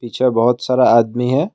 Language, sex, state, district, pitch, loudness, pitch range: Hindi, male, Assam, Kamrup Metropolitan, 125 Hz, -15 LUFS, 120-130 Hz